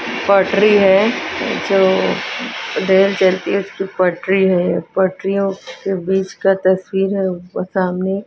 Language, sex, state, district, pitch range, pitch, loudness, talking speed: Hindi, female, Chhattisgarh, Raipur, 185-195 Hz, 190 Hz, -16 LUFS, 125 wpm